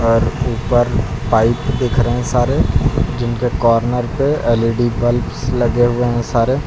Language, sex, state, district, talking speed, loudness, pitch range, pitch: Hindi, male, Uttar Pradesh, Lucknow, 145 wpm, -16 LUFS, 115-125 Hz, 120 Hz